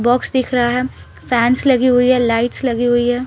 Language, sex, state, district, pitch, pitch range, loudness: Hindi, female, Bihar, Patna, 245 Hz, 240-255 Hz, -15 LUFS